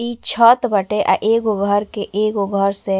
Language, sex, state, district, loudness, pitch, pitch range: Bhojpuri, female, Uttar Pradesh, Ghazipur, -17 LUFS, 210 Hz, 200-225 Hz